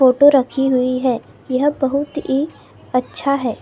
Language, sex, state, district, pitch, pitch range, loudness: Hindi, female, Maharashtra, Gondia, 270 Hz, 255-280 Hz, -18 LUFS